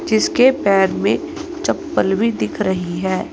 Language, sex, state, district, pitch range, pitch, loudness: Hindi, female, Uttar Pradesh, Saharanpur, 190-265 Hz, 210 Hz, -17 LUFS